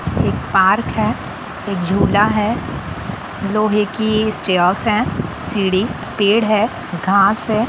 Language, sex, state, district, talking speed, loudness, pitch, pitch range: Hindi, female, Bihar, Sitamarhi, 95 wpm, -17 LUFS, 210 Hz, 195-215 Hz